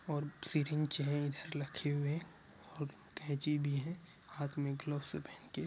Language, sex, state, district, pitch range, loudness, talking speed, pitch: Hindi, male, Bihar, Araria, 145-155 Hz, -39 LUFS, 125 wpm, 145 Hz